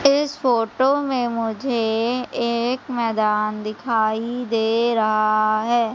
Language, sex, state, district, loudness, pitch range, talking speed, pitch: Hindi, female, Madhya Pradesh, Umaria, -21 LUFS, 220-245 Hz, 100 wpm, 235 Hz